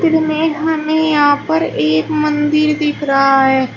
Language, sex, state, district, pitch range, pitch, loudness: Hindi, female, Uttar Pradesh, Shamli, 275-315 Hz, 300 Hz, -14 LUFS